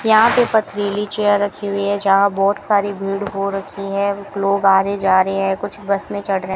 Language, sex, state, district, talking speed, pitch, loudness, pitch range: Hindi, female, Rajasthan, Bikaner, 245 wpm, 200 Hz, -18 LUFS, 195-205 Hz